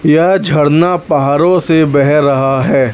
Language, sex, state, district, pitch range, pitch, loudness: Hindi, male, Chhattisgarh, Raipur, 140-175 Hz, 150 Hz, -11 LUFS